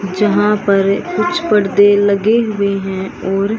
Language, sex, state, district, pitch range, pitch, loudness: Hindi, female, Haryana, Rohtak, 195-210 Hz, 200 Hz, -14 LUFS